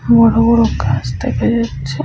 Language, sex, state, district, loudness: Bengali, female, West Bengal, Malda, -14 LUFS